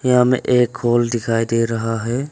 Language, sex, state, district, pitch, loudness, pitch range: Hindi, male, Arunachal Pradesh, Longding, 120 Hz, -18 LUFS, 115-125 Hz